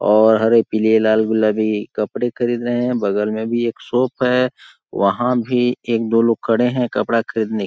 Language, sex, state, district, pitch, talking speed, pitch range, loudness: Hindi, male, Chhattisgarh, Balrampur, 115 Hz, 195 wpm, 110-120 Hz, -18 LUFS